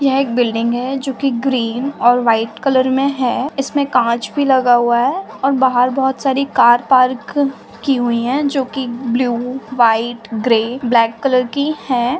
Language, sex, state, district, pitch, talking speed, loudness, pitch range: Hindi, female, Uttar Pradesh, Budaun, 255 Hz, 165 wpm, -16 LUFS, 240-270 Hz